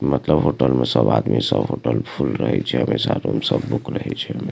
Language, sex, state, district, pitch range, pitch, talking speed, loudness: Maithili, male, Bihar, Supaul, 60-70 Hz, 70 Hz, 225 wpm, -20 LUFS